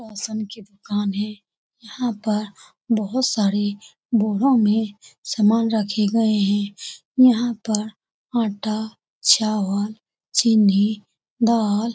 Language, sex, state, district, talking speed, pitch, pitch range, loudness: Hindi, female, Bihar, Saran, 105 wpm, 215 Hz, 205-230 Hz, -21 LUFS